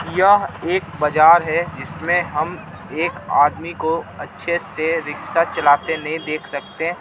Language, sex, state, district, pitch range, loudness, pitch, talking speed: Hindi, male, Jharkhand, Ranchi, 155-175 Hz, -19 LUFS, 165 Hz, 135 wpm